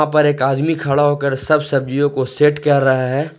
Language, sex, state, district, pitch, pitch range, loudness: Hindi, male, Jharkhand, Ranchi, 145 Hz, 135-150 Hz, -16 LUFS